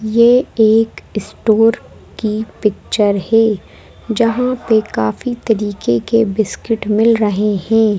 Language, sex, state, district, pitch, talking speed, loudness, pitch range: Hindi, female, Madhya Pradesh, Bhopal, 220 Hz, 115 wpm, -15 LUFS, 210-225 Hz